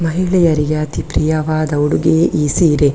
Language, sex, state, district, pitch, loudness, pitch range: Kannada, female, Karnataka, Dakshina Kannada, 155 Hz, -15 LUFS, 150-165 Hz